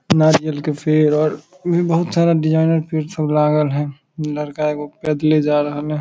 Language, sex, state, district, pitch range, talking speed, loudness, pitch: Maithili, male, Bihar, Samastipur, 150-160 Hz, 180 wpm, -18 LUFS, 155 Hz